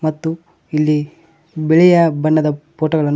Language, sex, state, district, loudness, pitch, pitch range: Kannada, male, Karnataka, Koppal, -15 LUFS, 155 Hz, 155-165 Hz